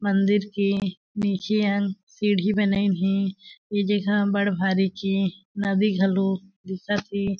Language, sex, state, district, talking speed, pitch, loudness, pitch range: Chhattisgarhi, female, Chhattisgarh, Jashpur, 130 wpm, 200 Hz, -24 LUFS, 195-205 Hz